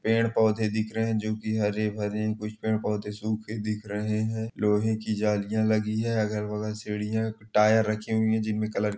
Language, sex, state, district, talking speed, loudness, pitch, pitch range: Hindi, male, Chhattisgarh, Balrampur, 205 wpm, -27 LUFS, 110 Hz, 105-110 Hz